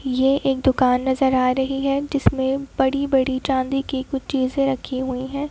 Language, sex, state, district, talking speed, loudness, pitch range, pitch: Hindi, female, Madhya Pradesh, Bhopal, 175 wpm, -21 LUFS, 260-275 Hz, 265 Hz